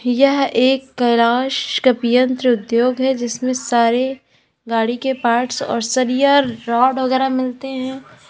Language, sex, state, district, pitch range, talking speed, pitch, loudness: Hindi, female, Uttar Pradesh, Lalitpur, 240-265 Hz, 130 wpm, 255 Hz, -17 LUFS